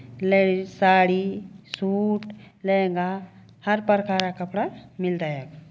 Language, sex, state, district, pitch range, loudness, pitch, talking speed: Hindi, female, Uttarakhand, Uttarkashi, 180-200 Hz, -24 LUFS, 190 Hz, 105 wpm